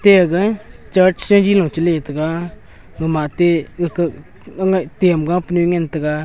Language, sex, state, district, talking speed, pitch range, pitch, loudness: Wancho, male, Arunachal Pradesh, Longding, 165 wpm, 160-190 Hz, 175 Hz, -17 LUFS